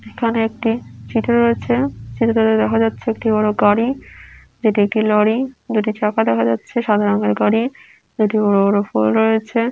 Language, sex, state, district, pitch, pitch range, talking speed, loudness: Bengali, female, West Bengal, Dakshin Dinajpur, 215 Hz, 205-230 Hz, 155 wpm, -17 LUFS